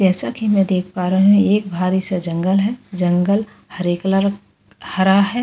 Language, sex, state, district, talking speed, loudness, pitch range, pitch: Hindi, female, Goa, North and South Goa, 200 wpm, -18 LUFS, 185-200 Hz, 190 Hz